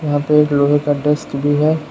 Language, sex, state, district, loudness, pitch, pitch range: Hindi, male, Uttar Pradesh, Lucknow, -15 LUFS, 145 Hz, 145-150 Hz